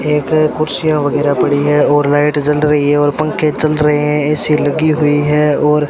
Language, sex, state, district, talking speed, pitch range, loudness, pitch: Hindi, male, Rajasthan, Bikaner, 215 wpm, 145-150 Hz, -13 LUFS, 150 Hz